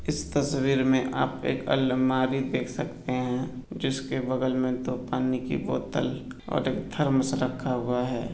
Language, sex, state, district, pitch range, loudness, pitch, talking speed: Hindi, male, Bihar, East Champaran, 125-135 Hz, -28 LUFS, 130 Hz, 160 wpm